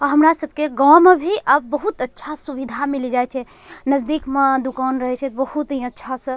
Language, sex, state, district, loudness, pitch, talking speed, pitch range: Angika, female, Bihar, Bhagalpur, -18 LUFS, 275 Hz, 235 wpm, 260-305 Hz